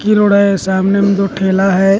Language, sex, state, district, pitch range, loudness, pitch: Chhattisgarhi, male, Chhattisgarh, Rajnandgaon, 195-200 Hz, -12 LUFS, 195 Hz